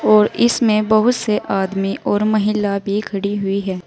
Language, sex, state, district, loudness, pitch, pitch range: Hindi, female, Uttar Pradesh, Saharanpur, -17 LUFS, 210 Hz, 200-215 Hz